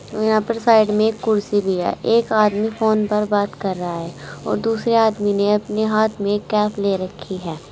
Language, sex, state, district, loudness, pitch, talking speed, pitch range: Hindi, female, Uttar Pradesh, Saharanpur, -19 LUFS, 210 Hz, 210 wpm, 200-220 Hz